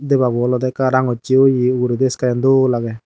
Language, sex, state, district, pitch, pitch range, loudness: Chakma, male, Tripura, Dhalai, 125 Hz, 125-130 Hz, -16 LUFS